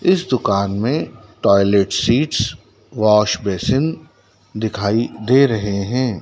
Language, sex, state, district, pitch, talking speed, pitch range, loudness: Hindi, male, Madhya Pradesh, Dhar, 105 Hz, 105 wpm, 100-125 Hz, -17 LUFS